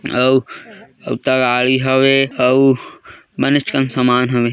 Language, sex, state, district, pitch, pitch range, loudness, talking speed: Chhattisgarhi, male, Chhattisgarh, Korba, 130 Hz, 125-135 Hz, -15 LUFS, 120 wpm